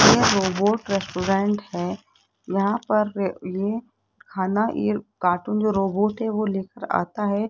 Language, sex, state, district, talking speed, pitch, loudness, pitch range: Hindi, female, Rajasthan, Jaipur, 135 wpm, 200 Hz, -23 LUFS, 190-215 Hz